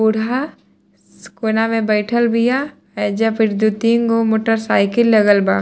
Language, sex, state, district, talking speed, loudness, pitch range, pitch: Bhojpuri, female, Bihar, Saran, 140 wpm, -16 LUFS, 215-235 Hz, 225 Hz